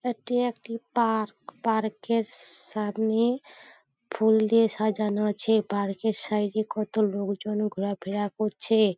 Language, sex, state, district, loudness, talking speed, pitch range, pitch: Bengali, female, West Bengal, Paschim Medinipur, -27 LUFS, 140 wpm, 210-225 Hz, 215 Hz